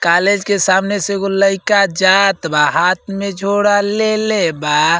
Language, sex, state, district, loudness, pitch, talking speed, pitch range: Bhojpuri, male, Uttar Pradesh, Ghazipur, -14 LUFS, 195 Hz, 165 wpm, 185-205 Hz